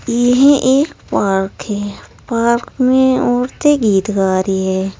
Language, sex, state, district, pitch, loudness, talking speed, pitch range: Hindi, female, Uttar Pradesh, Saharanpur, 235 Hz, -14 LUFS, 130 wpm, 195-260 Hz